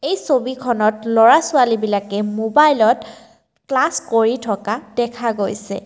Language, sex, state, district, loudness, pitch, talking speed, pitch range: Assamese, female, Assam, Kamrup Metropolitan, -17 LUFS, 225 Hz, 110 wpm, 215-255 Hz